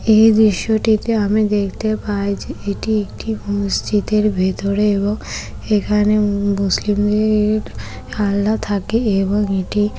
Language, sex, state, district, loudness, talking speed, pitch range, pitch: Bengali, female, West Bengal, Malda, -17 LUFS, 95 wpm, 200-215 Hz, 210 Hz